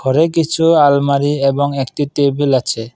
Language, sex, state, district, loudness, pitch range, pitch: Bengali, male, Assam, Kamrup Metropolitan, -14 LUFS, 135-145 Hz, 140 Hz